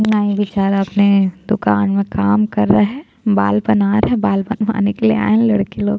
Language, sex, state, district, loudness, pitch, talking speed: Hindi, female, Chhattisgarh, Jashpur, -15 LUFS, 200 Hz, 220 wpm